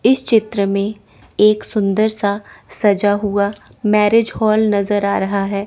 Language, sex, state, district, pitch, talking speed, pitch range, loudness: Hindi, female, Chandigarh, Chandigarh, 205 Hz, 150 wpm, 200-215 Hz, -16 LUFS